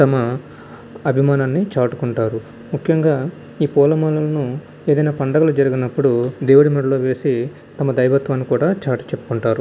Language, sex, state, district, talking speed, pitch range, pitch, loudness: Telugu, male, Andhra Pradesh, Visakhapatnam, 120 wpm, 125-150 Hz, 135 Hz, -18 LUFS